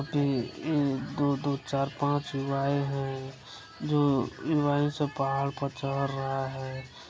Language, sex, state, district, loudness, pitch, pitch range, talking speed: Hindi, male, Bihar, Saran, -30 LUFS, 140 Hz, 135-145 Hz, 125 wpm